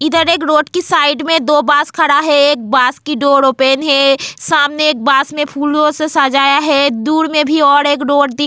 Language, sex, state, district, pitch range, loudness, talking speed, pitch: Hindi, female, Goa, North and South Goa, 280-305 Hz, -12 LUFS, 220 wpm, 290 Hz